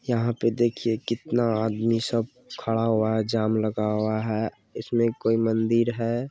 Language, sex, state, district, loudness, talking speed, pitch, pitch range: Maithili, male, Bihar, Supaul, -25 LUFS, 160 wpm, 115 Hz, 110-115 Hz